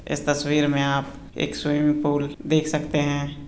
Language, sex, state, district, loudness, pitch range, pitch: Hindi, male, Bihar, Purnia, -23 LUFS, 145-150 Hz, 145 Hz